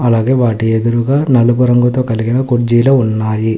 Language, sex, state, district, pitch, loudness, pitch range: Telugu, male, Telangana, Hyderabad, 120 Hz, -12 LUFS, 115-125 Hz